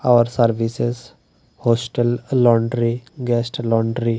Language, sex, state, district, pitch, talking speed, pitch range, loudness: Bengali, male, Tripura, West Tripura, 120 Hz, 100 wpm, 115-120 Hz, -19 LUFS